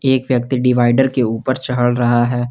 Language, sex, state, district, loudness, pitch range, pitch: Hindi, male, Jharkhand, Garhwa, -16 LUFS, 120-130 Hz, 125 Hz